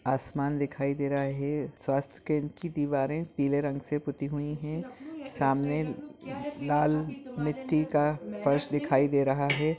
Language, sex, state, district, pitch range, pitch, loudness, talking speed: Hindi, male, Chhattisgarh, Kabirdham, 140-155 Hz, 145 Hz, -30 LUFS, 145 wpm